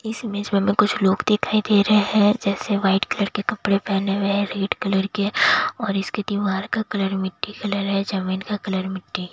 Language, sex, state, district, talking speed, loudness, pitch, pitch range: Hindi, female, Bihar, Katihar, 205 wpm, -21 LUFS, 200 Hz, 195-210 Hz